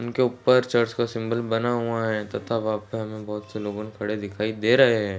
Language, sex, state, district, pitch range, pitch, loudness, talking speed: Hindi, male, Maharashtra, Solapur, 105-120 Hz, 110 Hz, -24 LUFS, 230 wpm